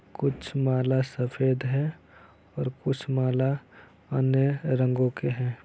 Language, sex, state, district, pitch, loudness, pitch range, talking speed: Hindi, male, Bihar, Araria, 130 Hz, -27 LUFS, 125-135 Hz, 115 wpm